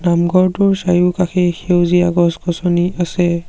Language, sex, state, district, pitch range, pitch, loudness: Assamese, male, Assam, Sonitpur, 175-180 Hz, 175 Hz, -15 LUFS